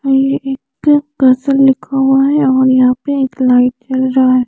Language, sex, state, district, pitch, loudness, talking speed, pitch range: Hindi, female, Chandigarh, Chandigarh, 265 Hz, -12 LUFS, 175 wpm, 255-275 Hz